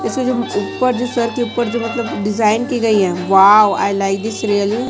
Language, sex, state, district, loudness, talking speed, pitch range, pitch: Hindi, female, Chhattisgarh, Raipur, -15 LUFS, 210 wpm, 205-240 Hz, 225 Hz